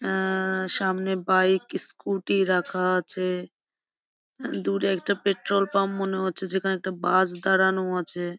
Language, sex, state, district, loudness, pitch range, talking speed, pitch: Bengali, female, West Bengal, Jhargram, -24 LUFS, 185-190 Hz, 135 wpm, 190 Hz